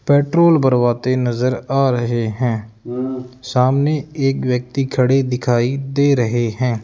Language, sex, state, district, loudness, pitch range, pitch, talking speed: Hindi, male, Rajasthan, Jaipur, -17 LUFS, 120-135 Hz, 125 Hz, 125 wpm